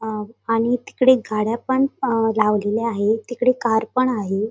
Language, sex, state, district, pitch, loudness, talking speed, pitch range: Marathi, female, Maharashtra, Sindhudurg, 225 Hz, -20 LUFS, 145 wpm, 215-250 Hz